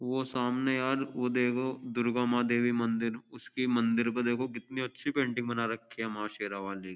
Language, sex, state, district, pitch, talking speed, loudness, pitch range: Hindi, male, Uttar Pradesh, Jyotiba Phule Nagar, 120 Hz, 190 wpm, -31 LUFS, 115-130 Hz